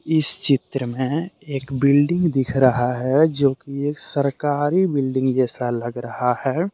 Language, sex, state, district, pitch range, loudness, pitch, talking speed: Hindi, male, Jharkhand, Deoghar, 130-150 Hz, -20 LUFS, 140 Hz, 150 wpm